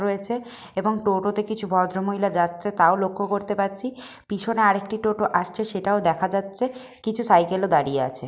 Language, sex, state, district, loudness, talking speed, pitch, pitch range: Bengali, female, West Bengal, Jalpaiguri, -23 LUFS, 165 wpm, 200 Hz, 190-215 Hz